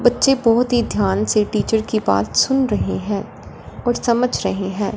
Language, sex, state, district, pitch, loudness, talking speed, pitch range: Hindi, female, Punjab, Fazilka, 220 Hz, -18 LUFS, 180 wpm, 205-240 Hz